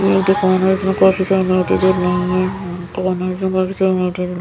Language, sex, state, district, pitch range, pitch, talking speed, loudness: Hindi, female, Bihar, Patna, 180-190 Hz, 185 Hz, 165 wpm, -16 LUFS